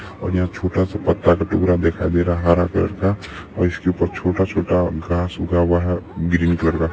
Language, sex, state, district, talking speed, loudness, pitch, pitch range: Maithili, male, Bihar, Supaul, 200 wpm, -19 LUFS, 90 Hz, 85-95 Hz